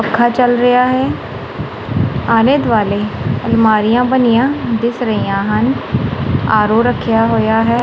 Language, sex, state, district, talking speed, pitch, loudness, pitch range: Punjabi, female, Punjab, Kapurthala, 115 wpm, 225 Hz, -14 LUFS, 210-245 Hz